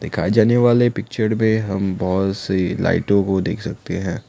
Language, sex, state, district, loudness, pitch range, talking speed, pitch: Hindi, male, Assam, Kamrup Metropolitan, -19 LUFS, 95-110 Hz, 180 wpm, 100 Hz